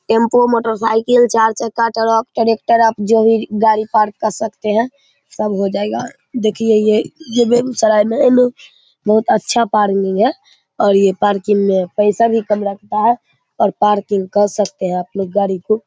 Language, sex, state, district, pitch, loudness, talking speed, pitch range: Hindi, male, Bihar, Begusarai, 220 Hz, -15 LUFS, 170 wpm, 205-230 Hz